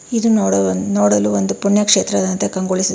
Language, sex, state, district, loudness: Kannada, female, Karnataka, Bangalore, -16 LUFS